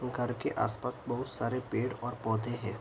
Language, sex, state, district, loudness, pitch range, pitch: Hindi, male, Bihar, Araria, -35 LUFS, 115-125 Hz, 120 Hz